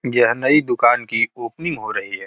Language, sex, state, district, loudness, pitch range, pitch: Hindi, male, Bihar, Gopalganj, -18 LUFS, 120-145 Hz, 120 Hz